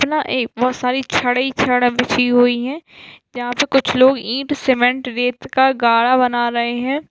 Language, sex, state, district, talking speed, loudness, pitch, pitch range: Hindi, female, Bihar, East Champaran, 185 wpm, -16 LUFS, 250 Hz, 245-265 Hz